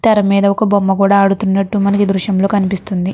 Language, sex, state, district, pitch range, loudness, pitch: Telugu, female, Andhra Pradesh, Chittoor, 195-205 Hz, -13 LUFS, 200 Hz